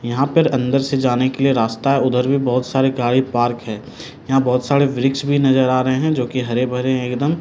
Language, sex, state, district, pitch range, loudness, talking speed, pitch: Hindi, male, Delhi, New Delhi, 125-135 Hz, -17 LUFS, 250 wpm, 130 Hz